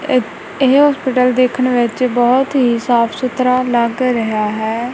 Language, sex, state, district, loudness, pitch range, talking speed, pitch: Punjabi, female, Punjab, Kapurthala, -14 LUFS, 235-255 Hz, 145 wpm, 250 Hz